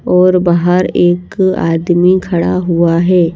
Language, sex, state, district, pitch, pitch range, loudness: Hindi, female, Madhya Pradesh, Bhopal, 175 Hz, 170-180 Hz, -11 LUFS